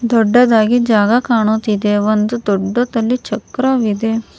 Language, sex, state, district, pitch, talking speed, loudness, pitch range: Kannada, female, Karnataka, Bangalore, 225 Hz, 80 wpm, -14 LUFS, 215-240 Hz